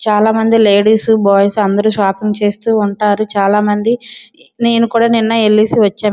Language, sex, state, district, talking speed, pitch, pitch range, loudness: Telugu, female, Andhra Pradesh, Srikakulam, 145 wpm, 215 Hz, 205-225 Hz, -12 LUFS